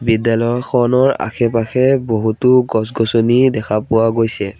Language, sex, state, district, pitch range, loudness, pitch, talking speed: Assamese, male, Assam, Sonitpur, 110-125 Hz, -15 LUFS, 115 Hz, 105 wpm